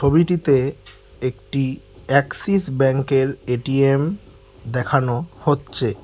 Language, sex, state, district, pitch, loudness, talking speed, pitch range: Bengali, male, West Bengal, Alipurduar, 135 Hz, -20 LUFS, 70 wpm, 130-140 Hz